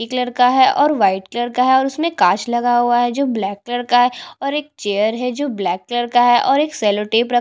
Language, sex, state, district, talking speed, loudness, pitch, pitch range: Hindi, female, Chhattisgarh, Bastar, 275 wpm, -17 LUFS, 245 Hz, 235-270 Hz